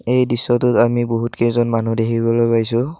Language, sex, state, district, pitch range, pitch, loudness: Assamese, male, Assam, Kamrup Metropolitan, 115-120 Hz, 120 Hz, -17 LUFS